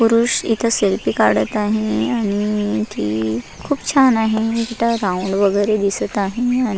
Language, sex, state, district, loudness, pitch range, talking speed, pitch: Marathi, female, Maharashtra, Nagpur, -18 LUFS, 195-230 Hz, 140 wpm, 210 Hz